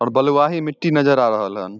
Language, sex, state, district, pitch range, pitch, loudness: Hindi, male, Bihar, Samastipur, 115-150 Hz, 140 Hz, -17 LUFS